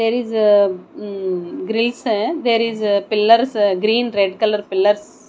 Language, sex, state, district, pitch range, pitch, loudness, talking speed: English, female, Odisha, Nuapada, 200-230 Hz, 210 Hz, -17 LUFS, 135 wpm